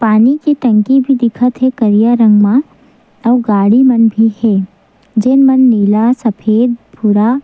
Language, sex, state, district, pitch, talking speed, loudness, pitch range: Chhattisgarhi, female, Chhattisgarh, Sukma, 235 Hz, 160 wpm, -11 LUFS, 215-255 Hz